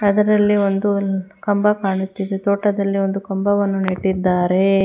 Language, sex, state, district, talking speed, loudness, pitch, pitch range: Kannada, female, Karnataka, Bangalore, 110 wpm, -18 LUFS, 195 Hz, 190-205 Hz